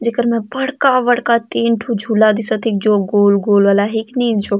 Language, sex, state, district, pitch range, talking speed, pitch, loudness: Sadri, female, Chhattisgarh, Jashpur, 205-235 Hz, 210 wpm, 220 Hz, -15 LUFS